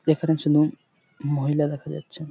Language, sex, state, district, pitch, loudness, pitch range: Bengali, male, West Bengal, Purulia, 150 Hz, -24 LUFS, 145-155 Hz